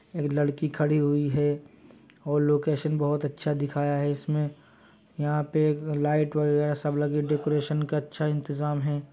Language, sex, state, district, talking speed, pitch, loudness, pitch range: Hindi, male, Uttar Pradesh, Jyotiba Phule Nagar, 145 wpm, 150 Hz, -27 LUFS, 145-150 Hz